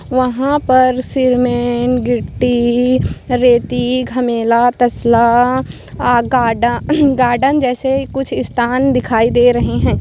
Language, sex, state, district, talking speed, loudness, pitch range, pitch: Hindi, female, Chhattisgarh, Korba, 90 wpm, -14 LUFS, 240-255 Hz, 250 Hz